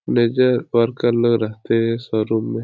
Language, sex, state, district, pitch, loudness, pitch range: Hindi, male, Bihar, Supaul, 115 Hz, -19 LUFS, 115-120 Hz